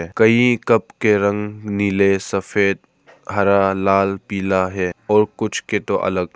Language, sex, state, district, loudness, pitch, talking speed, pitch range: Hindi, male, Arunachal Pradesh, Papum Pare, -18 LUFS, 100 Hz, 150 wpm, 95-105 Hz